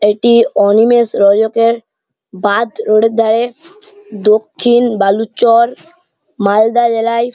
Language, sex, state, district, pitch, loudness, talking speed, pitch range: Bengali, male, West Bengal, Malda, 230 Hz, -12 LUFS, 80 wpm, 215-240 Hz